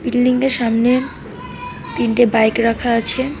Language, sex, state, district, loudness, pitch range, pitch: Bengali, female, West Bengal, Alipurduar, -16 LUFS, 230-255 Hz, 245 Hz